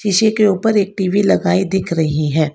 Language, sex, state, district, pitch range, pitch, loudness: Hindi, female, Karnataka, Bangalore, 165-205 Hz, 190 Hz, -15 LUFS